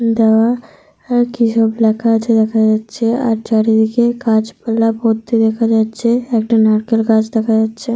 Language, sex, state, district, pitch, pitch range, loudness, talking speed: Bengali, female, Jharkhand, Sahebganj, 225 Hz, 220-230 Hz, -14 LUFS, 135 wpm